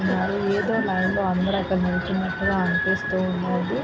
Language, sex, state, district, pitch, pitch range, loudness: Telugu, female, Andhra Pradesh, Krishna, 185 Hz, 185-195 Hz, -23 LUFS